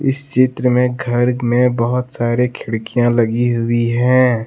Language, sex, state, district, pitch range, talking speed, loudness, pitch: Hindi, male, Jharkhand, Deoghar, 120-125 Hz, 150 wpm, -16 LUFS, 125 Hz